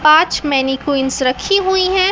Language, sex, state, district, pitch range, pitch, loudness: Hindi, male, Chhattisgarh, Raipur, 265-380 Hz, 305 Hz, -15 LUFS